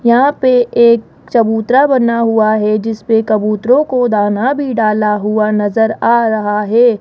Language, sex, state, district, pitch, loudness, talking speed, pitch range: Hindi, female, Rajasthan, Jaipur, 225 Hz, -12 LUFS, 155 wpm, 215-245 Hz